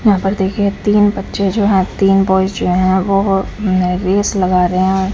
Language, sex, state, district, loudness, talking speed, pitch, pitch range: Hindi, female, Punjab, Fazilka, -14 LUFS, 210 wpm, 195 Hz, 190-200 Hz